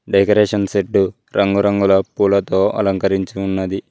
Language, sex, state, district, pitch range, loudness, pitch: Telugu, male, Telangana, Mahabubabad, 95-100 Hz, -16 LUFS, 100 Hz